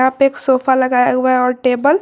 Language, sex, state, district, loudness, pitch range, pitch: Hindi, female, Jharkhand, Garhwa, -14 LUFS, 250-270 Hz, 255 Hz